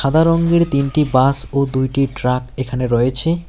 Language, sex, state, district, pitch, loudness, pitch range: Bengali, male, West Bengal, Alipurduar, 135 Hz, -16 LUFS, 130-155 Hz